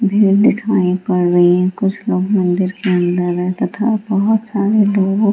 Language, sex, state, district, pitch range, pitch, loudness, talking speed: Hindi, female, Bihar, Gaya, 180-210 Hz, 195 Hz, -15 LUFS, 180 wpm